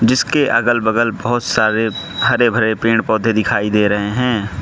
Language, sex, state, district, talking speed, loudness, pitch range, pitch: Hindi, male, Manipur, Imphal West, 170 wpm, -15 LUFS, 110-120 Hz, 115 Hz